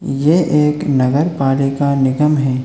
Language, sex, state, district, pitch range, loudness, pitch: Hindi, male, Chhattisgarh, Raigarh, 135-150 Hz, -15 LUFS, 140 Hz